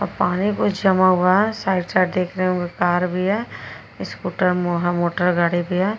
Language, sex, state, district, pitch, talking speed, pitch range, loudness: Hindi, female, Uttar Pradesh, Jyotiba Phule Nagar, 180 Hz, 190 wpm, 175-190 Hz, -20 LUFS